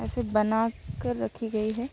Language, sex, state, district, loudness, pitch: Hindi, female, Jharkhand, Sahebganj, -29 LUFS, 215 Hz